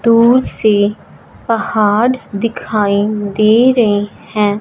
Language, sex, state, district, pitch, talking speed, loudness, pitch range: Hindi, female, Punjab, Fazilka, 215 Hz, 90 wpm, -13 LUFS, 205-230 Hz